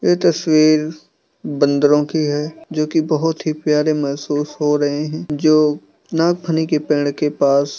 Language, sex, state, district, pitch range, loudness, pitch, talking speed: Hindi, male, Bihar, East Champaran, 145-155 Hz, -17 LUFS, 150 Hz, 155 wpm